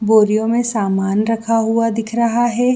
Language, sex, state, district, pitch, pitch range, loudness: Hindi, female, Jharkhand, Jamtara, 225 Hz, 215-235 Hz, -16 LUFS